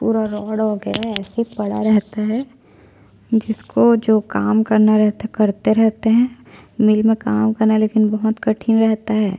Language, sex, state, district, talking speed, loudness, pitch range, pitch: Hindi, female, Chhattisgarh, Jashpur, 165 wpm, -17 LUFS, 215-225 Hz, 220 Hz